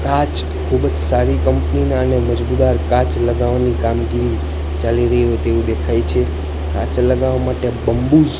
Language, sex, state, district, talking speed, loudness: Gujarati, male, Gujarat, Gandhinagar, 145 wpm, -17 LUFS